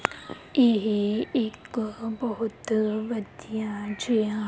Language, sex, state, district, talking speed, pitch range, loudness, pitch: Punjabi, female, Punjab, Kapurthala, 65 wpm, 210-230 Hz, -27 LUFS, 220 Hz